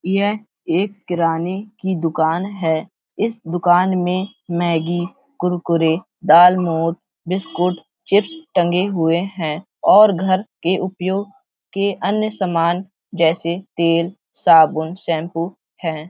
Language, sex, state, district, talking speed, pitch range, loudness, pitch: Hindi, female, Uttar Pradesh, Hamirpur, 100 wpm, 165-195 Hz, -18 LUFS, 180 Hz